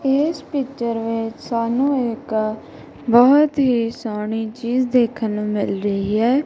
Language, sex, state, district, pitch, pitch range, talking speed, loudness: Punjabi, female, Punjab, Kapurthala, 230 Hz, 220-265 Hz, 130 wpm, -19 LUFS